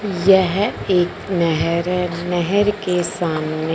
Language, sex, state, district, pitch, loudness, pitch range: Hindi, female, Punjab, Fazilka, 180 Hz, -18 LUFS, 170-190 Hz